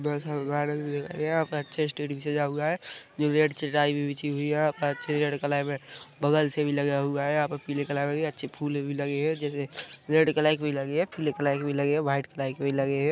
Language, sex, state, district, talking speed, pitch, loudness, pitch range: Hindi, male, Chhattisgarh, Rajnandgaon, 250 wpm, 145 Hz, -28 LUFS, 145-150 Hz